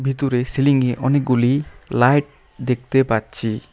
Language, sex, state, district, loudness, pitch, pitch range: Bengali, male, West Bengal, Alipurduar, -19 LUFS, 130 Hz, 125-140 Hz